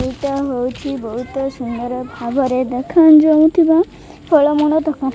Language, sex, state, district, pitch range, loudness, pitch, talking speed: Odia, female, Odisha, Malkangiri, 255-310 Hz, -15 LUFS, 270 Hz, 105 wpm